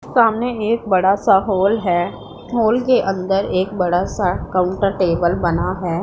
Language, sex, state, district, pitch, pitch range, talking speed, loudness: Hindi, female, Punjab, Pathankot, 195 Hz, 180-220 Hz, 160 wpm, -18 LUFS